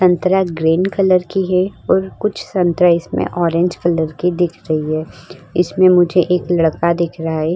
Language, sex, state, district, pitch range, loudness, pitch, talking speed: Hindi, female, Bihar, Vaishali, 165-185 Hz, -16 LUFS, 175 Hz, 165 wpm